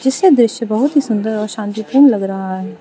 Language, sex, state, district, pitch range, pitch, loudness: Hindi, female, Arunachal Pradesh, Lower Dibang Valley, 210-265 Hz, 220 Hz, -15 LUFS